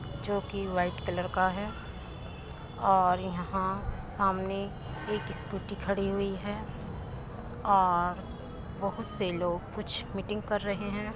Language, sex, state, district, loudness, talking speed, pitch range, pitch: Hindi, female, Uttar Pradesh, Muzaffarnagar, -32 LUFS, 125 wpm, 180-200 Hz, 195 Hz